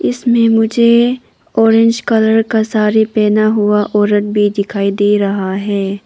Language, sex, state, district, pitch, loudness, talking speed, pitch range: Hindi, female, Arunachal Pradesh, Papum Pare, 215 Hz, -12 LUFS, 140 wpm, 205-225 Hz